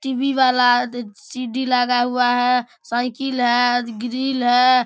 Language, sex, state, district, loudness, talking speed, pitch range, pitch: Maithili, male, Bihar, Darbhanga, -19 LUFS, 135 wpm, 245-255 Hz, 245 Hz